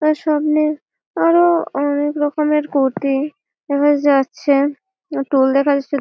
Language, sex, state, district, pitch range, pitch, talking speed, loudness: Bengali, female, West Bengal, Malda, 280-305 Hz, 290 Hz, 110 wpm, -17 LUFS